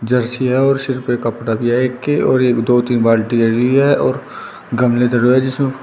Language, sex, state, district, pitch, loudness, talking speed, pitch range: Hindi, male, Uttar Pradesh, Shamli, 125 Hz, -15 LUFS, 255 wpm, 120-130 Hz